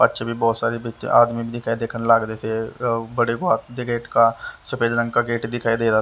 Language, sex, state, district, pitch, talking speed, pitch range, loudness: Hindi, male, Haryana, Rohtak, 115 Hz, 230 wpm, 115-120 Hz, -21 LUFS